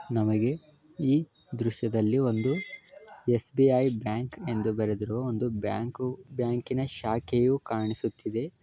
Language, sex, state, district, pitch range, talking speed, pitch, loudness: Kannada, male, Karnataka, Belgaum, 110-135 Hz, 105 wpm, 120 Hz, -29 LUFS